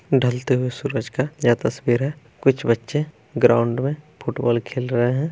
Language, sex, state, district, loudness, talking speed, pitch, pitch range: Hindi, male, Bihar, East Champaran, -21 LUFS, 170 wpm, 125 Hz, 120-140 Hz